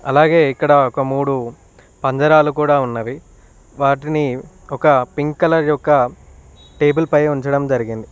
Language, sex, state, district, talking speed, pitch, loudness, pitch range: Telugu, male, Telangana, Mahabubabad, 120 wpm, 140 Hz, -16 LUFS, 120-150 Hz